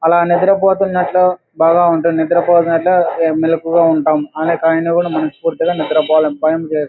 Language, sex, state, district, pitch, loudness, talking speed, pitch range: Telugu, male, Andhra Pradesh, Anantapur, 165 Hz, -14 LUFS, 150 wpm, 160-175 Hz